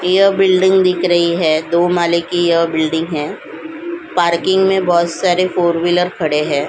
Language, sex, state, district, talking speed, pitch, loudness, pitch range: Hindi, female, Goa, North and South Goa, 170 wpm, 175 Hz, -14 LUFS, 170-185 Hz